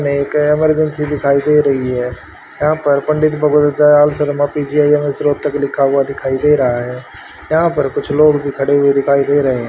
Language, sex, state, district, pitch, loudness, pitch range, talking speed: Hindi, male, Haryana, Rohtak, 145 Hz, -14 LUFS, 140-150 Hz, 185 wpm